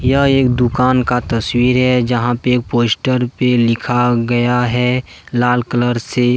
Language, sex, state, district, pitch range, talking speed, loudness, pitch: Hindi, male, Jharkhand, Deoghar, 120-125 Hz, 160 wpm, -15 LUFS, 125 Hz